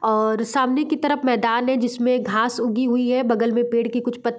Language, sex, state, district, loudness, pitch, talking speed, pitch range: Hindi, female, Bihar, Gopalganj, -21 LUFS, 245 Hz, 245 wpm, 235-255 Hz